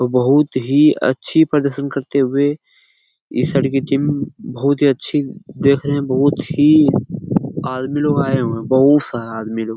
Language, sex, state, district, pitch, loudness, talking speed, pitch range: Hindi, male, Bihar, Jamui, 140 Hz, -16 LUFS, 170 wpm, 130-145 Hz